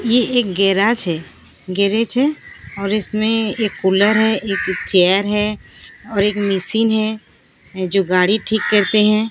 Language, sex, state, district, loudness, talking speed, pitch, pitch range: Hindi, female, Odisha, Sambalpur, -17 LUFS, 150 wpm, 210 Hz, 195-220 Hz